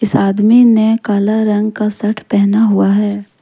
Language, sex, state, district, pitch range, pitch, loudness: Hindi, female, Jharkhand, Deoghar, 205-220 Hz, 210 Hz, -12 LUFS